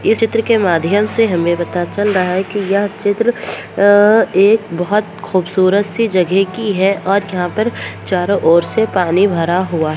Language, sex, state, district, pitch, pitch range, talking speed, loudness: Hindi, female, Bihar, Madhepura, 195 Hz, 180-210 Hz, 185 wpm, -14 LUFS